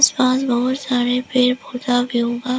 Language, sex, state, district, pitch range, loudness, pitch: Hindi, female, Arunachal Pradesh, Lower Dibang Valley, 245-255 Hz, -18 LUFS, 250 Hz